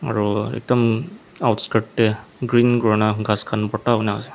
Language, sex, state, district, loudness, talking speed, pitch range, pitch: Nagamese, male, Nagaland, Dimapur, -20 LUFS, 150 wpm, 105-120 Hz, 110 Hz